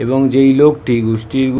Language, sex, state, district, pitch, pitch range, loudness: Bengali, male, West Bengal, North 24 Parganas, 130 Hz, 120-135 Hz, -12 LUFS